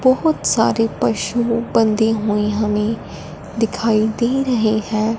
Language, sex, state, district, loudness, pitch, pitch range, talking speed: Hindi, female, Punjab, Fazilka, -18 LUFS, 225 Hz, 215-235 Hz, 115 wpm